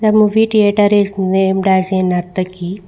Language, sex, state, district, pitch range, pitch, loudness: English, female, Karnataka, Bangalore, 185-205 Hz, 190 Hz, -14 LUFS